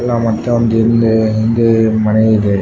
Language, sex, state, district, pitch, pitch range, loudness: Kannada, male, Karnataka, Raichur, 115 Hz, 110-115 Hz, -12 LUFS